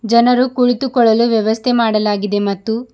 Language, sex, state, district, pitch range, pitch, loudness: Kannada, female, Karnataka, Bidar, 215-245 Hz, 230 Hz, -14 LUFS